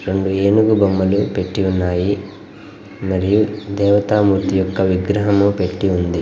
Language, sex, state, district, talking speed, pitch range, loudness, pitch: Telugu, male, Andhra Pradesh, Guntur, 105 wpm, 95-100 Hz, -17 LUFS, 95 Hz